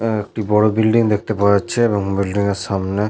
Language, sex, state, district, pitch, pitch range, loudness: Bengali, male, West Bengal, Malda, 105 Hz, 100-110 Hz, -17 LUFS